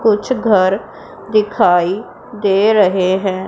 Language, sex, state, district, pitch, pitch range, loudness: Hindi, female, Punjab, Pathankot, 205 Hz, 190-215 Hz, -14 LUFS